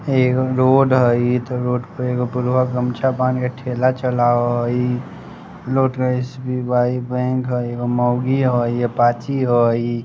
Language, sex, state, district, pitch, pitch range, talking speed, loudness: Bajjika, male, Bihar, Vaishali, 125 Hz, 120-130 Hz, 130 wpm, -18 LUFS